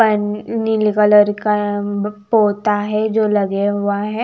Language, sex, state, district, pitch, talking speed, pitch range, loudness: Hindi, female, Himachal Pradesh, Shimla, 210 Hz, 140 wpm, 205-215 Hz, -16 LUFS